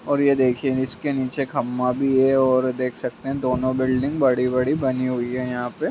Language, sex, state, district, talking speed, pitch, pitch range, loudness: Hindi, male, Bihar, Lakhisarai, 205 wpm, 130 Hz, 125-135 Hz, -22 LUFS